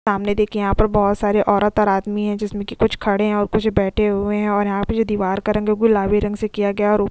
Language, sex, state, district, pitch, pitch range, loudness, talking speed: Hindi, female, Goa, North and South Goa, 210 Hz, 205-210 Hz, -19 LUFS, 305 wpm